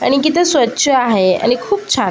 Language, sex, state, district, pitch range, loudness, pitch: Marathi, female, Maharashtra, Aurangabad, 240-345 Hz, -14 LUFS, 270 Hz